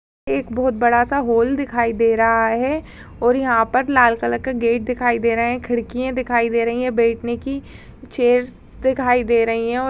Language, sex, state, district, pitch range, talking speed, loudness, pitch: Hindi, female, Bihar, Purnia, 230-255 Hz, 205 wpm, -18 LUFS, 240 Hz